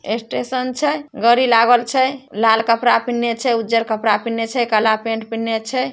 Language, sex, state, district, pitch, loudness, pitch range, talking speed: Maithili, female, Bihar, Samastipur, 230 Hz, -17 LUFS, 225-255 Hz, 170 wpm